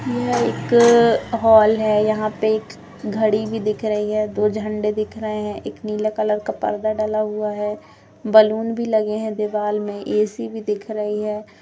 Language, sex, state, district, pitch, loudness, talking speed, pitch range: Hindi, female, Bihar, Gopalganj, 215 Hz, -20 LUFS, 185 wpm, 210-220 Hz